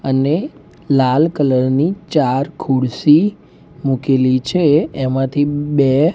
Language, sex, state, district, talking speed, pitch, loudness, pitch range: Gujarati, male, Gujarat, Gandhinagar, 105 wpm, 140 Hz, -16 LUFS, 130-155 Hz